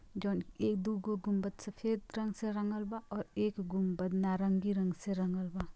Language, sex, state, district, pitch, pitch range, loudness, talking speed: Bhojpuri, female, Bihar, Gopalganj, 200 Hz, 190-210 Hz, -36 LUFS, 185 wpm